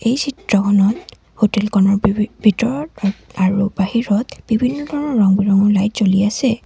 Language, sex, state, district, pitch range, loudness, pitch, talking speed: Assamese, female, Assam, Sonitpur, 200-235 Hz, -17 LUFS, 210 Hz, 125 wpm